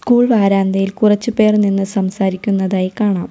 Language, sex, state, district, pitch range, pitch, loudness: Malayalam, female, Kerala, Kollam, 195-215 Hz, 200 Hz, -15 LUFS